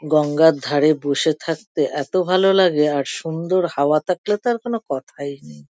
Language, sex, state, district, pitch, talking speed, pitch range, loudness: Bengali, female, West Bengal, Kolkata, 155 Hz, 170 wpm, 145-185 Hz, -19 LUFS